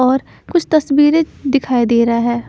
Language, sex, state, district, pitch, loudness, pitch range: Hindi, female, Chandigarh, Chandigarh, 270 Hz, -15 LUFS, 240-300 Hz